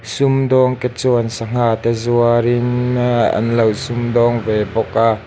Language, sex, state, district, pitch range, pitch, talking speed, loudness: Mizo, male, Mizoram, Aizawl, 115-125 Hz, 120 Hz, 125 wpm, -16 LUFS